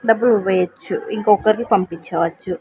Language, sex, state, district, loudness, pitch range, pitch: Telugu, female, Andhra Pradesh, Sri Satya Sai, -18 LUFS, 175-220 Hz, 195 Hz